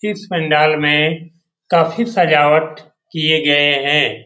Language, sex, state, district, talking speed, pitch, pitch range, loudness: Hindi, male, Bihar, Jamui, 110 wpm, 155 Hz, 150-170 Hz, -14 LUFS